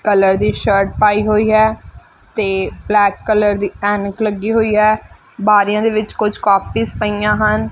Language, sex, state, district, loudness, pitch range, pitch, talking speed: Punjabi, female, Punjab, Fazilka, -14 LUFS, 200-215 Hz, 210 Hz, 165 wpm